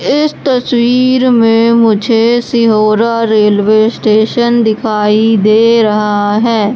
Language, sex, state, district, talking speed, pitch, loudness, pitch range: Hindi, female, Madhya Pradesh, Katni, 100 wpm, 225 Hz, -10 LUFS, 215-240 Hz